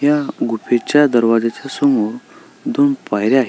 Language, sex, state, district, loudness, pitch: Marathi, male, Maharashtra, Sindhudurg, -16 LUFS, 150 Hz